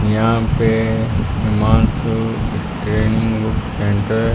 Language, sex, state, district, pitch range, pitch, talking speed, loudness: Hindi, male, Rajasthan, Bikaner, 105-115 Hz, 110 Hz, 95 wpm, -17 LUFS